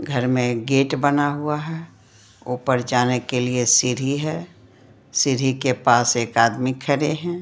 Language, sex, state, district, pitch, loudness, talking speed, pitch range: Hindi, female, Bihar, Patna, 130 Hz, -20 LUFS, 155 wpm, 125-145 Hz